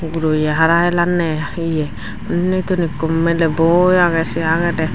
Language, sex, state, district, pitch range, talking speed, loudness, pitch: Chakma, female, Tripura, Dhalai, 160-175 Hz, 160 wpm, -16 LUFS, 165 Hz